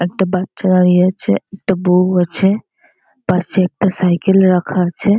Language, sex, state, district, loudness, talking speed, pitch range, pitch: Bengali, female, West Bengal, North 24 Parganas, -15 LUFS, 150 wpm, 180-190 Hz, 185 Hz